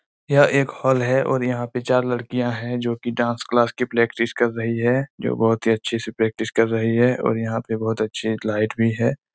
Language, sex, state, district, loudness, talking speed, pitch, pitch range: Hindi, male, Chhattisgarh, Raigarh, -21 LUFS, 235 wpm, 120 Hz, 115-125 Hz